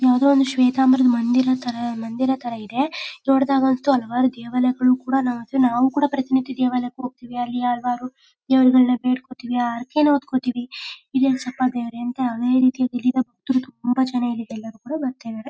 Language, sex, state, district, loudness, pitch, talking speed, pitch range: Kannada, female, Karnataka, Mysore, -21 LUFS, 255 Hz, 125 wpm, 245-265 Hz